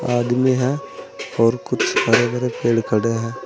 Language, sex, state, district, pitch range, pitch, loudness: Hindi, male, Uttar Pradesh, Saharanpur, 115-125 Hz, 120 Hz, -19 LUFS